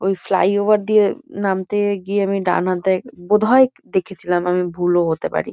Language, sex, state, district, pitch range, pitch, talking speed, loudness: Bengali, female, West Bengal, Kolkata, 180-205 Hz, 195 Hz, 150 wpm, -18 LUFS